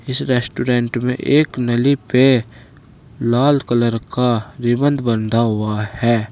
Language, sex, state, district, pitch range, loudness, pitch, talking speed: Hindi, male, Uttar Pradesh, Saharanpur, 115-130 Hz, -17 LUFS, 120 Hz, 125 wpm